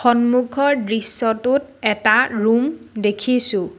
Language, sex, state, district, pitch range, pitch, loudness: Assamese, female, Assam, Sonitpur, 215-250 Hz, 235 Hz, -18 LUFS